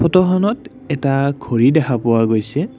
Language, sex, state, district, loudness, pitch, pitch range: Assamese, male, Assam, Kamrup Metropolitan, -16 LUFS, 145 Hz, 125-185 Hz